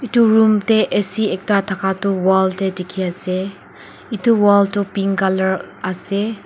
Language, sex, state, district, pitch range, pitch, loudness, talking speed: Nagamese, female, Nagaland, Dimapur, 190-210 Hz, 195 Hz, -17 LUFS, 165 wpm